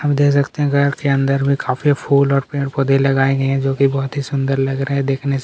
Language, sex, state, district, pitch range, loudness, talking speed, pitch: Hindi, male, Chhattisgarh, Kabirdham, 135-140 Hz, -17 LUFS, 265 wpm, 140 Hz